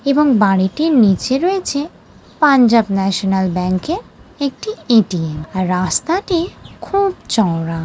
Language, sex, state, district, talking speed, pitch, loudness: Bengali, female, West Bengal, Jalpaiguri, 100 wpm, 235 Hz, -16 LUFS